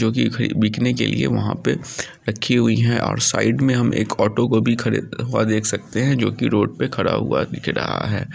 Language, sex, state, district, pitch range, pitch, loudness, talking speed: Angika, male, Bihar, Samastipur, 110-125 Hz, 115 Hz, -20 LUFS, 230 wpm